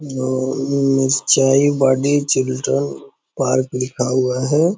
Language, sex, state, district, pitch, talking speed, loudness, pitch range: Hindi, male, Bihar, Purnia, 135 Hz, 100 wpm, -17 LUFS, 130-140 Hz